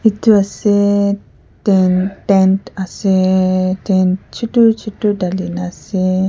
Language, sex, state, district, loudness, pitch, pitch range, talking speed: Nagamese, female, Nagaland, Kohima, -15 LUFS, 190 Hz, 185-205 Hz, 105 wpm